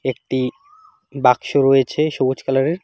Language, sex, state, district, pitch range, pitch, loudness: Bengali, male, West Bengal, Alipurduar, 130-155 Hz, 135 Hz, -18 LUFS